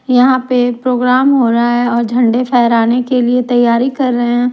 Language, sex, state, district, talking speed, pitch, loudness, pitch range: Hindi, female, Odisha, Nuapada, 200 wpm, 245 Hz, -12 LUFS, 240-255 Hz